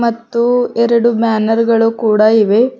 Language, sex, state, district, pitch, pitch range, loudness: Kannada, female, Karnataka, Bidar, 230 Hz, 220-235 Hz, -12 LUFS